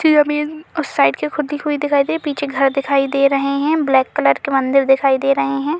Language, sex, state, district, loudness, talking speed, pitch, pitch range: Hindi, female, Uttar Pradesh, Budaun, -16 LUFS, 185 wpm, 275 Hz, 270-295 Hz